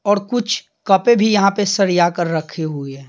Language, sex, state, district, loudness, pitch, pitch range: Hindi, male, Bihar, Patna, -17 LUFS, 195 Hz, 170-215 Hz